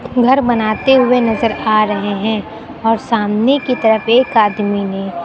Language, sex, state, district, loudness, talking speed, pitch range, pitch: Hindi, female, Uttar Pradesh, Lucknow, -14 LUFS, 160 wpm, 210-250 Hz, 220 Hz